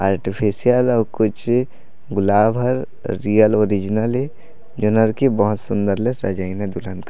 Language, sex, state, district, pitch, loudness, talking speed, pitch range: Chhattisgarhi, male, Chhattisgarh, Raigarh, 110 Hz, -19 LUFS, 150 wpm, 100-125 Hz